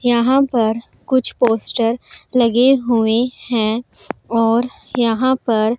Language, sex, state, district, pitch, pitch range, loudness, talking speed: Hindi, female, Punjab, Pathankot, 235 Hz, 225-255 Hz, -17 LUFS, 115 wpm